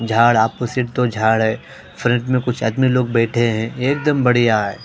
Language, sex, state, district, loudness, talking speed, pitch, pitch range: Hindi, male, Punjab, Pathankot, -17 LUFS, 125 wpm, 120 Hz, 110-125 Hz